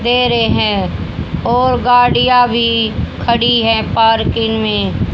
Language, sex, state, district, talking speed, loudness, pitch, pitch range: Hindi, female, Haryana, Charkhi Dadri, 115 wpm, -13 LUFS, 235 Hz, 220-245 Hz